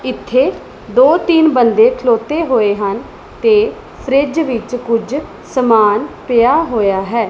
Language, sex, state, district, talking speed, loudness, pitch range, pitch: Punjabi, female, Punjab, Pathankot, 125 wpm, -13 LUFS, 225-295 Hz, 245 Hz